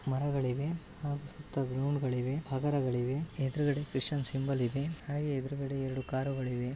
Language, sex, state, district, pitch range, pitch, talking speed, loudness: Kannada, male, Karnataka, Bellary, 130-145 Hz, 135 Hz, 125 wpm, -33 LUFS